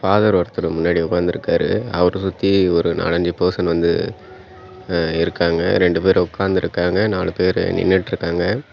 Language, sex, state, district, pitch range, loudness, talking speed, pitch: Tamil, male, Tamil Nadu, Namakkal, 85-95 Hz, -18 LUFS, 115 wpm, 90 Hz